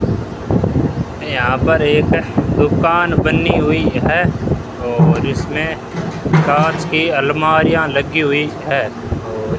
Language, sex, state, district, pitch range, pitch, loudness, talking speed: Hindi, male, Rajasthan, Bikaner, 140-160 Hz, 150 Hz, -15 LUFS, 105 wpm